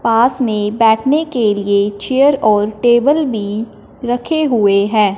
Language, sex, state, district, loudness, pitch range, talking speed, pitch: Hindi, female, Punjab, Fazilka, -14 LUFS, 210-260 Hz, 140 wpm, 225 Hz